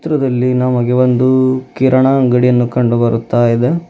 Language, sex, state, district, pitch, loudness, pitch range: Kannada, male, Karnataka, Bidar, 125 Hz, -13 LUFS, 120-130 Hz